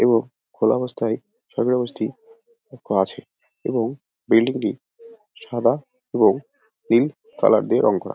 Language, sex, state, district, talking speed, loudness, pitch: Bengali, male, West Bengal, Dakshin Dinajpur, 120 wpm, -21 LUFS, 140 Hz